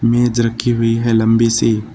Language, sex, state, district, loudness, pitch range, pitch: Hindi, male, Uttar Pradesh, Lucknow, -15 LUFS, 115-120 Hz, 115 Hz